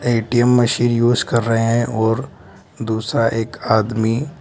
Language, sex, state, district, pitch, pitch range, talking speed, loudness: Hindi, male, Mizoram, Aizawl, 115 Hz, 110-120 Hz, 150 wpm, -17 LUFS